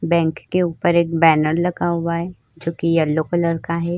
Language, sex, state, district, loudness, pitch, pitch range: Hindi, female, Uttar Pradesh, Hamirpur, -19 LUFS, 170 Hz, 160-170 Hz